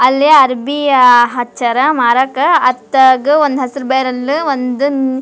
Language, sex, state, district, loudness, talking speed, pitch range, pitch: Kannada, female, Karnataka, Dharwad, -11 LUFS, 125 wpm, 250-280 Hz, 260 Hz